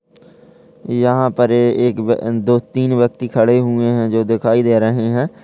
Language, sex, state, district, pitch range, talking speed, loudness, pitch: Hindi, male, Uttar Pradesh, Ghazipur, 115-125 Hz, 175 wpm, -15 LUFS, 120 Hz